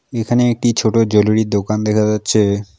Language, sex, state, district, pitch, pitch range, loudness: Bengali, male, West Bengal, Alipurduar, 110 Hz, 105-115 Hz, -15 LUFS